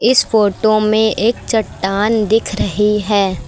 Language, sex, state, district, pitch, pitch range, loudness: Hindi, female, Uttar Pradesh, Lucknow, 215 Hz, 205-220 Hz, -15 LUFS